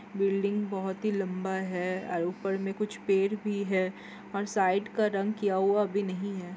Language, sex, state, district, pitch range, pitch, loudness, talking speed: Hindi, female, Chhattisgarh, Korba, 190-205 Hz, 195 Hz, -30 LUFS, 190 wpm